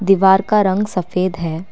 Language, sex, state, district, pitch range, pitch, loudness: Hindi, female, Assam, Kamrup Metropolitan, 180-195 Hz, 190 Hz, -16 LUFS